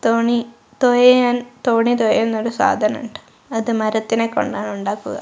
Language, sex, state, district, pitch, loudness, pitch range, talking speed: Malayalam, female, Kerala, Kozhikode, 230 Hz, -18 LUFS, 220-245 Hz, 115 wpm